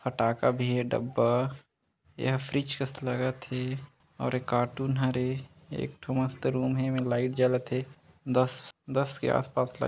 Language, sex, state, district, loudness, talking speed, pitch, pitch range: Hindi, male, Chhattisgarh, Korba, -30 LUFS, 160 wpm, 130 Hz, 125-135 Hz